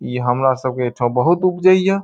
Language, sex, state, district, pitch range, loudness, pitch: Maithili, male, Bihar, Saharsa, 125-185 Hz, -16 LUFS, 130 Hz